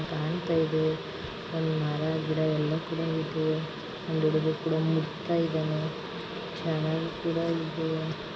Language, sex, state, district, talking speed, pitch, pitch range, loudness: Kannada, female, Karnataka, Mysore, 100 wpm, 160 Hz, 155-165 Hz, -30 LUFS